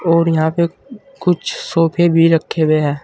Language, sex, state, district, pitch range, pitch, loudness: Hindi, male, Uttar Pradesh, Saharanpur, 160-170 Hz, 165 Hz, -15 LUFS